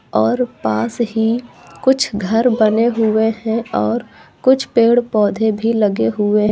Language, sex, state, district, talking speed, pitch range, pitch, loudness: Hindi, female, Uttar Pradesh, Lucknow, 145 wpm, 215-235 Hz, 225 Hz, -16 LUFS